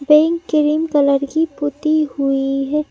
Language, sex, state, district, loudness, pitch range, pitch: Hindi, male, Madhya Pradesh, Bhopal, -17 LUFS, 280-310 Hz, 300 Hz